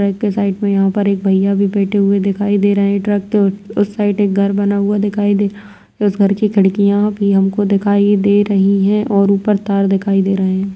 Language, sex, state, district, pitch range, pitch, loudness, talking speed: Kumaoni, female, Uttarakhand, Tehri Garhwal, 200-205 Hz, 200 Hz, -14 LUFS, 240 wpm